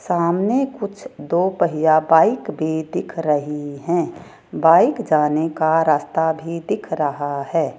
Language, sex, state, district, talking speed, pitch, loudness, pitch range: Hindi, female, Rajasthan, Jaipur, 130 wpm, 160 Hz, -19 LUFS, 155-175 Hz